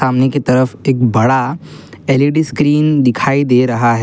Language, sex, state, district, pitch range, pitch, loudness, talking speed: Hindi, male, Assam, Kamrup Metropolitan, 125-145 Hz, 130 Hz, -13 LUFS, 165 wpm